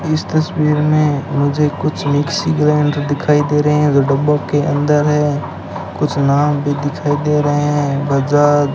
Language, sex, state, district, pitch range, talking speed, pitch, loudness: Hindi, male, Rajasthan, Bikaner, 145-150 Hz, 170 wpm, 145 Hz, -15 LUFS